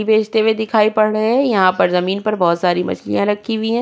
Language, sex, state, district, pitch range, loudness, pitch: Hindi, female, Uttar Pradesh, Jyotiba Phule Nagar, 185-220 Hz, -16 LUFS, 215 Hz